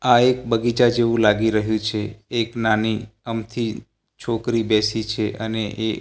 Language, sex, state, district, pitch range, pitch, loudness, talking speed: Gujarati, male, Gujarat, Gandhinagar, 110-115 Hz, 110 Hz, -21 LUFS, 150 wpm